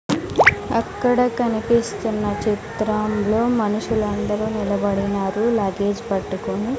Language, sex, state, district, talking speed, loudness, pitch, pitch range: Telugu, female, Andhra Pradesh, Sri Satya Sai, 60 wpm, -20 LUFS, 215 Hz, 205-225 Hz